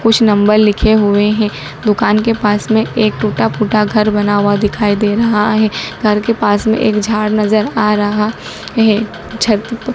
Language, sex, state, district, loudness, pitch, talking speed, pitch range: Hindi, male, Madhya Pradesh, Dhar, -13 LUFS, 215 Hz, 200 wpm, 210-220 Hz